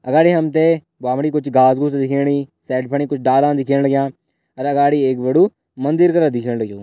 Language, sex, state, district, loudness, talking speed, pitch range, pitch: Garhwali, male, Uttarakhand, Tehri Garhwal, -17 LUFS, 185 wpm, 130-150 Hz, 140 Hz